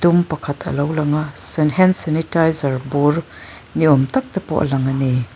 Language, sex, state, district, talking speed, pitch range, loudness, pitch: Mizo, female, Mizoram, Aizawl, 190 wpm, 135-165 Hz, -18 LUFS, 150 Hz